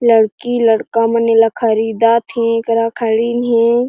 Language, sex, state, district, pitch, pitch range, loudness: Chhattisgarhi, female, Chhattisgarh, Jashpur, 230 Hz, 225-235 Hz, -14 LUFS